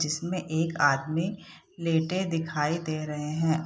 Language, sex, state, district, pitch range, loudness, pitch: Hindi, female, Bihar, Saharsa, 155-170 Hz, -28 LUFS, 160 Hz